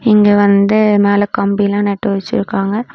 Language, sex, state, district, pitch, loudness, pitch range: Tamil, female, Tamil Nadu, Namakkal, 205 Hz, -13 LUFS, 200-215 Hz